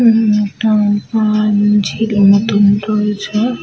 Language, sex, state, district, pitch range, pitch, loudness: Bengali, female, Jharkhand, Sahebganj, 205-220 Hz, 210 Hz, -13 LUFS